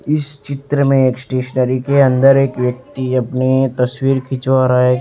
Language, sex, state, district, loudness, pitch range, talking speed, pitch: Hindi, male, Uttar Pradesh, Etah, -15 LUFS, 130-135 Hz, 170 wpm, 130 Hz